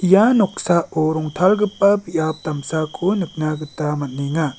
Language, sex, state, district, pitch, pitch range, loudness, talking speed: Garo, male, Meghalaya, West Garo Hills, 160 Hz, 155-190 Hz, -19 LUFS, 105 wpm